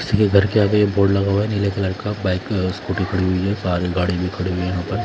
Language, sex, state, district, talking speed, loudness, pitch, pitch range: Hindi, male, Punjab, Fazilka, 310 wpm, -19 LUFS, 95 Hz, 90-100 Hz